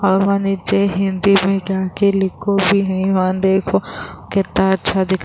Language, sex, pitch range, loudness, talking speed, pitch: Urdu, female, 190-200 Hz, -16 LUFS, 150 wpm, 195 Hz